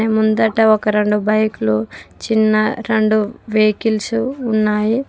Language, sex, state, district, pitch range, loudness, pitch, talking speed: Telugu, female, Telangana, Mahabubabad, 210-220 Hz, -16 LUFS, 215 Hz, 95 wpm